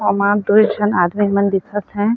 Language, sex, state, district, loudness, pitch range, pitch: Chhattisgarhi, female, Chhattisgarh, Sarguja, -16 LUFS, 200-210 Hz, 205 Hz